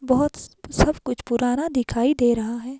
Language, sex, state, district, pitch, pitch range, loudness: Hindi, female, Himachal Pradesh, Shimla, 255 Hz, 240-270 Hz, -22 LUFS